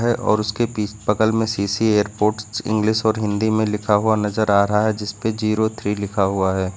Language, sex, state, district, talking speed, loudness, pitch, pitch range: Hindi, male, Uttar Pradesh, Lucknow, 205 wpm, -20 LUFS, 105 Hz, 105-110 Hz